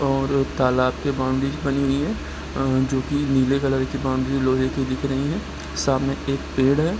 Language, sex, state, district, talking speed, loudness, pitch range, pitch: Hindi, male, Bihar, Gopalganj, 205 wpm, -22 LUFS, 130-140 Hz, 135 Hz